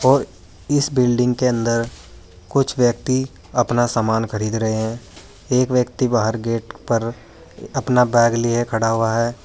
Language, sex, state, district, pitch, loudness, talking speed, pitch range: Hindi, male, Uttar Pradesh, Saharanpur, 115 Hz, -19 LUFS, 145 wpm, 110-125 Hz